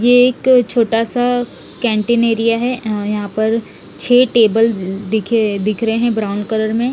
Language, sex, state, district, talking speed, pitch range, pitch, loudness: Hindi, female, Punjab, Fazilka, 165 wpm, 215-240 Hz, 225 Hz, -15 LUFS